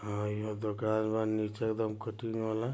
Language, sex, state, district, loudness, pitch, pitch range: Bhojpuri, male, Bihar, Gopalganj, -34 LUFS, 110 Hz, 105-110 Hz